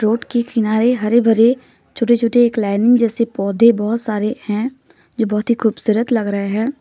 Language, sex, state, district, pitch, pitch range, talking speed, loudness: Hindi, female, Jharkhand, Deoghar, 230 Hz, 215-235 Hz, 170 wpm, -16 LUFS